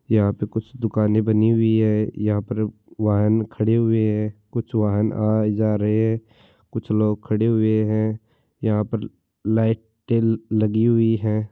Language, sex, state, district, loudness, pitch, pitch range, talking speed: Marwari, male, Rajasthan, Churu, -21 LUFS, 110 Hz, 105-115 Hz, 160 wpm